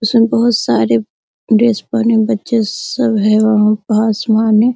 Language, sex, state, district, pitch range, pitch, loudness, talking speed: Hindi, female, Bihar, Araria, 215-230 Hz, 220 Hz, -13 LUFS, 165 wpm